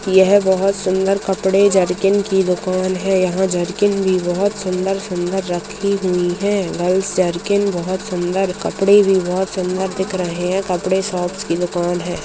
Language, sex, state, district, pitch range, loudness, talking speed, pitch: Hindi, female, Uttar Pradesh, Ghazipur, 180-195 Hz, -17 LUFS, 155 wpm, 190 Hz